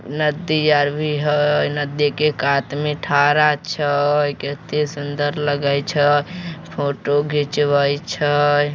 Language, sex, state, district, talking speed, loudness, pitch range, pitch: Maithili, male, Bihar, Samastipur, 115 wpm, -19 LUFS, 145-150 Hz, 145 Hz